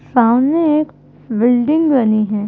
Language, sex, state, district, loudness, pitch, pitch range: Hindi, female, Madhya Pradesh, Bhopal, -14 LUFS, 245 Hz, 225-300 Hz